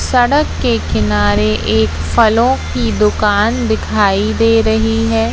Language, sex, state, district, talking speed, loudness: Hindi, female, Madhya Pradesh, Katni, 125 wpm, -13 LUFS